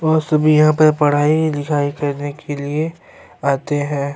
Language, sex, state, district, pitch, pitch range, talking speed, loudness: Urdu, male, Bihar, Saharsa, 145 Hz, 145-155 Hz, 130 wpm, -17 LUFS